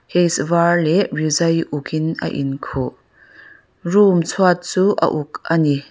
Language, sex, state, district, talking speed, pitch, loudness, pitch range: Mizo, female, Mizoram, Aizawl, 140 wpm, 165 Hz, -18 LUFS, 155-180 Hz